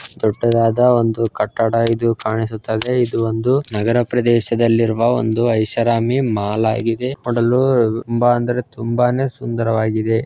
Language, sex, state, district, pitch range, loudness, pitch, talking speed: Kannada, male, Karnataka, Chamarajanagar, 110-120 Hz, -17 LUFS, 115 Hz, 105 wpm